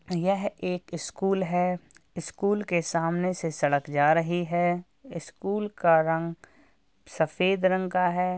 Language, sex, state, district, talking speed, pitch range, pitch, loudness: Hindi, male, Uttar Pradesh, Jalaun, 135 wpm, 165-185 Hz, 175 Hz, -27 LUFS